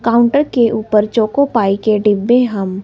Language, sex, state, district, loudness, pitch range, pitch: Hindi, male, Himachal Pradesh, Shimla, -14 LUFS, 210-240 Hz, 225 Hz